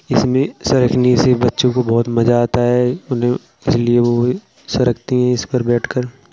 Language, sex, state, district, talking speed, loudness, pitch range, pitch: Hindi, male, Uttar Pradesh, Jalaun, 160 wpm, -16 LUFS, 120-125 Hz, 125 Hz